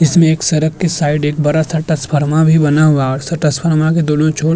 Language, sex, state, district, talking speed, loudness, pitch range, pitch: Hindi, male, Uttar Pradesh, Jyotiba Phule Nagar, 265 wpm, -13 LUFS, 150-160 Hz, 155 Hz